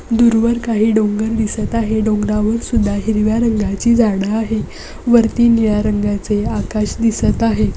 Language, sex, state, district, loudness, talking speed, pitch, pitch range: Marathi, female, Maharashtra, Pune, -16 LUFS, 130 wpm, 220 Hz, 210-230 Hz